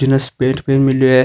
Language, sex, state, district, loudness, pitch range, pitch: Rajasthani, male, Rajasthan, Nagaur, -15 LUFS, 130-135 Hz, 135 Hz